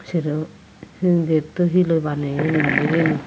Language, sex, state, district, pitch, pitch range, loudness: Chakma, female, Tripura, Unakoti, 155 Hz, 150-165 Hz, -20 LUFS